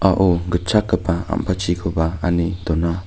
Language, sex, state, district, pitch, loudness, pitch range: Garo, male, Meghalaya, North Garo Hills, 90 Hz, -20 LUFS, 85-95 Hz